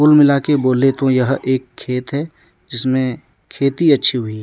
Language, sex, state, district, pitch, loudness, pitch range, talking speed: Hindi, male, Jharkhand, Deoghar, 130 Hz, -16 LUFS, 125-140 Hz, 175 wpm